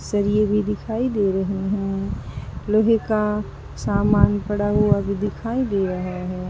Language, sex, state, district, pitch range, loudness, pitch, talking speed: Hindi, female, Uttar Pradesh, Saharanpur, 190-210 Hz, -21 LUFS, 205 Hz, 150 wpm